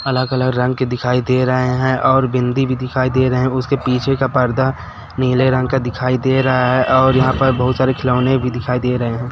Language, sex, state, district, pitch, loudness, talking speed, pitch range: Hindi, male, Chhattisgarh, Raigarh, 130 Hz, -16 LUFS, 240 wpm, 125-130 Hz